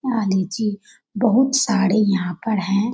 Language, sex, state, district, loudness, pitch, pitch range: Hindi, female, Bihar, Jamui, -19 LUFS, 210 Hz, 195-230 Hz